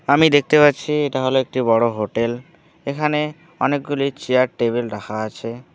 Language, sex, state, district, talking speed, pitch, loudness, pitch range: Bengali, male, West Bengal, Alipurduar, 145 wpm, 135 Hz, -19 LUFS, 115-150 Hz